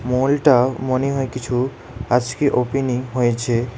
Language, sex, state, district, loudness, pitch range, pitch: Bengali, male, West Bengal, Alipurduar, -19 LUFS, 125-135 Hz, 125 Hz